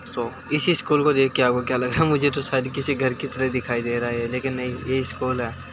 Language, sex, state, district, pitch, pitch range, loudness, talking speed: Hindi, male, Uttar Pradesh, Hamirpur, 130 Hz, 125-140 Hz, -23 LUFS, 280 wpm